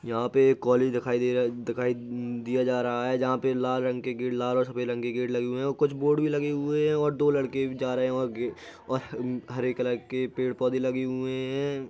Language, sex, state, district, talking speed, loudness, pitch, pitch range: Hindi, male, Bihar, Jahanabad, 260 wpm, -27 LUFS, 125 Hz, 125-130 Hz